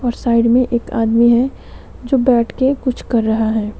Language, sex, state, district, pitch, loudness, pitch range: Hindi, female, West Bengal, Alipurduar, 240 Hz, -15 LUFS, 230-255 Hz